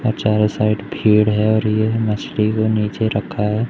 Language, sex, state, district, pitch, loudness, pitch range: Hindi, male, Madhya Pradesh, Umaria, 105 Hz, -18 LUFS, 105-110 Hz